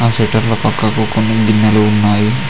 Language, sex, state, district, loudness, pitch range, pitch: Telugu, male, Telangana, Mahabubabad, -13 LUFS, 105-110 Hz, 110 Hz